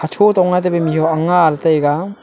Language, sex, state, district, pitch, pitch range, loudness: Wancho, male, Arunachal Pradesh, Longding, 170 Hz, 160-180 Hz, -14 LUFS